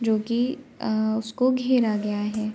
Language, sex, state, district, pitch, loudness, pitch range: Hindi, female, Uttar Pradesh, Varanasi, 225 Hz, -24 LUFS, 215-250 Hz